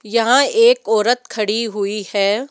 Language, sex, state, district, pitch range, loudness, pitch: Hindi, female, Rajasthan, Jaipur, 210-250 Hz, -16 LUFS, 225 Hz